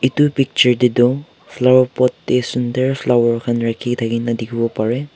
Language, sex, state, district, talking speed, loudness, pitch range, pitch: Nagamese, male, Nagaland, Kohima, 175 wpm, -17 LUFS, 120-130 Hz, 125 Hz